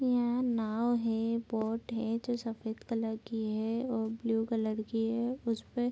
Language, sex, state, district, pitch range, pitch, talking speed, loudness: Hindi, female, Bihar, Madhepura, 225-240 Hz, 230 Hz, 185 wpm, -33 LUFS